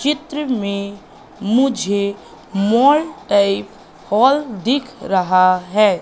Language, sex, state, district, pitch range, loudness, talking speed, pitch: Hindi, female, Madhya Pradesh, Katni, 200-270 Hz, -17 LUFS, 90 wpm, 210 Hz